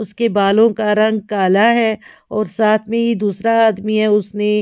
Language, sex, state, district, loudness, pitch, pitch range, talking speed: Hindi, female, Chhattisgarh, Raipur, -15 LUFS, 215 Hz, 210-225 Hz, 180 wpm